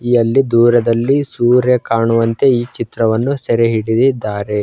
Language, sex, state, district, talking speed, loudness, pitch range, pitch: Kannada, male, Karnataka, Bijapur, 105 wpm, -14 LUFS, 115-125 Hz, 120 Hz